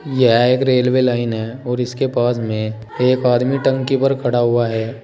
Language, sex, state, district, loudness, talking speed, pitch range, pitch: Hindi, male, Uttar Pradesh, Saharanpur, -17 LUFS, 190 wpm, 120-130 Hz, 125 Hz